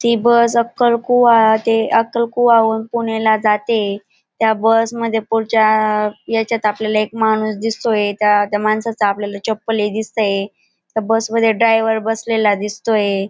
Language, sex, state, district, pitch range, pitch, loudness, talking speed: Marathi, female, Maharashtra, Dhule, 215-230 Hz, 220 Hz, -16 LUFS, 130 wpm